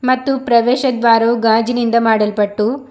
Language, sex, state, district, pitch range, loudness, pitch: Kannada, female, Karnataka, Bidar, 225-255 Hz, -14 LUFS, 235 Hz